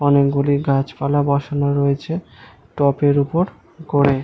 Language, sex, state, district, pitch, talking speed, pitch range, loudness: Bengali, male, West Bengal, Malda, 140 Hz, 155 wpm, 140-145 Hz, -19 LUFS